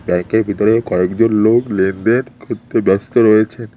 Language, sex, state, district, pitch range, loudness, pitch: Bengali, male, West Bengal, Cooch Behar, 95-115 Hz, -14 LUFS, 110 Hz